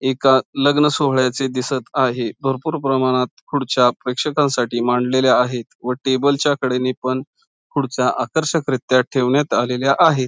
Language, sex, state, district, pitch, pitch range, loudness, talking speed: Marathi, male, Maharashtra, Pune, 130 Hz, 125-140 Hz, -18 LUFS, 115 wpm